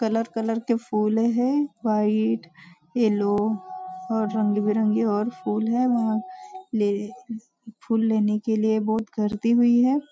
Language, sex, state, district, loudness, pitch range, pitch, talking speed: Hindi, female, Maharashtra, Nagpur, -23 LUFS, 210-240 Hz, 220 Hz, 140 wpm